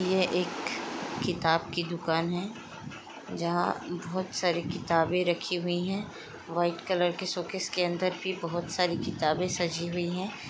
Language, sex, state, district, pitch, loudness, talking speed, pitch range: Hindi, female, Chhattisgarh, Raigarh, 175 Hz, -30 LUFS, 150 wpm, 170-185 Hz